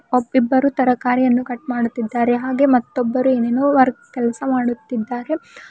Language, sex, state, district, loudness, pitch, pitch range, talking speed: Kannada, female, Karnataka, Bidar, -18 LUFS, 250 Hz, 240-265 Hz, 125 wpm